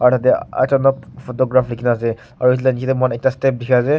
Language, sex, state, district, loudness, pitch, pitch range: Nagamese, male, Nagaland, Kohima, -17 LUFS, 130 Hz, 125-130 Hz